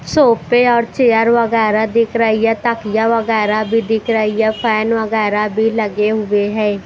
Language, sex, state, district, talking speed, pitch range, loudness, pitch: Hindi, female, Bihar, West Champaran, 175 wpm, 215-230 Hz, -15 LUFS, 225 Hz